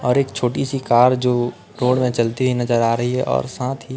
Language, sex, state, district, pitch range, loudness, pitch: Hindi, male, Chhattisgarh, Raipur, 120-130 Hz, -19 LUFS, 125 Hz